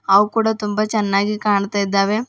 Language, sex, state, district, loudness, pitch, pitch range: Kannada, female, Karnataka, Bidar, -18 LUFS, 210 Hz, 200-215 Hz